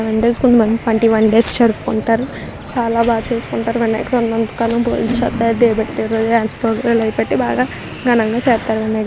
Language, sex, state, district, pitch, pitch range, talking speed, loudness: Telugu, female, Andhra Pradesh, Visakhapatnam, 230 Hz, 220-235 Hz, 105 wpm, -16 LUFS